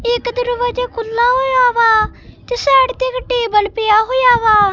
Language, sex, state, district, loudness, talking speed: Punjabi, female, Punjab, Kapurthala, -14 LUFS, 165 wpm